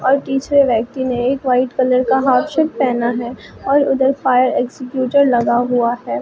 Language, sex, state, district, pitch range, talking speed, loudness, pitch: Hindi, female, Bihar, Katihar, 245-270 Hz, 185 wpm, -16 LUFS, 255 Hz